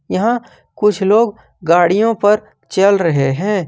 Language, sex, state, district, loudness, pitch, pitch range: Hindi, male, Jharkhand, Ranchi, -15 LUFS, 205 Hz, 175-215 Hz